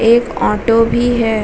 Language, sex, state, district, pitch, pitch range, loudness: Hindi, female, Bihar, Vaishali, 230 Hz, 220-235 Hz, -14 LUFS